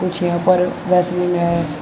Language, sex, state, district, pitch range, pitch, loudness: Hindi, male, Uttar Pradesh, Shamli, 175-180 Hz, 180 Hz, -17 LUFS